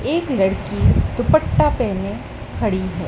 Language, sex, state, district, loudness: Hindi, male, Madhya Pradesh, Dhar, -19 LUFS